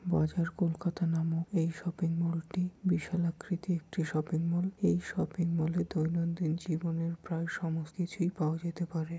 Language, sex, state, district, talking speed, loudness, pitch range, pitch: Bengali, male, West Bengal, Malda, 155 wpm, -33 LUFS, 165-175 Hz, 170 Hz